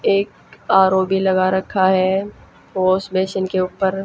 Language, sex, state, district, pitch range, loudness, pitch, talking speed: Hindi, female, Haryana, Jhajjar, 185-195 Hz, -18 LUFS, 190 Hz, 150 wpm